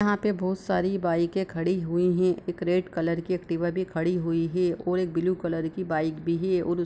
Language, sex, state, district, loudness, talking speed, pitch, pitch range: Hindi, female, Bihar, Sitamarhi, -27 LUFS, 185 wpm, 175 Hz, 170-185 Hz